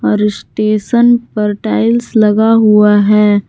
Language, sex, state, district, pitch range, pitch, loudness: Hindi, female, Jharkhand, Garhwa, 205-225 Hz, 210 Hz, -11 LUFS